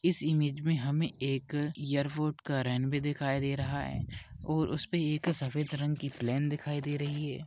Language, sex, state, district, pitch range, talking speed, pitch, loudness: Hindi, male, Maharashtra, Pune, 135-150 Hz, 195 wpm, 145 Hz, -33 LUFS